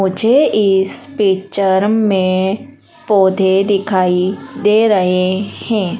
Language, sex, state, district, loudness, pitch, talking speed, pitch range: Hindi, female, Madhya Pradesh, Dhar, -14 LUFS, 195 Hz, 90 wpm, 190-215 Hz